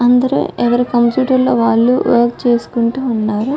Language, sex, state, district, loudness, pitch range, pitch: Telugu, female, Andhra Pradesh, Chittoor, -14 LUFS, 235-250 Hz, 240 Hz